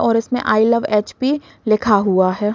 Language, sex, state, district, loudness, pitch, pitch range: Hindi, female, Uttar Pradesh, Gorakhpur, -17 LUFS, 215 Hz, 210-235 Hz